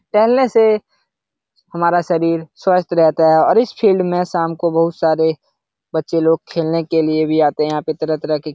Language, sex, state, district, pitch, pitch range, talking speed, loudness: Hindi, male, Uttar Pradesh, Etah, 165 Hz, 160-175 Hz, 205 wpm, -16 LUFS